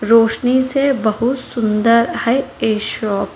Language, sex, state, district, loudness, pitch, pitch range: Hindi, female, Telangana, Hyderabad, -16 LUFS, 230 Hz, 220-255 Hz